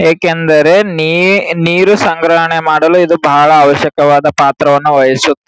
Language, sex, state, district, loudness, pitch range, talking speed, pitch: Kannada, male, Karnataka, Gulbarga, -9 LUFS, 145-170 Hz, 120 wpm, 160 Hz